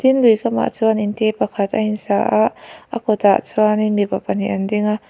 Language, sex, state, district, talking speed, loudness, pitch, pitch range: Mizo, female, Mizoram, Aizawl, 200 wpm, -18 LUFS, 215 Hz, 205-225 Hz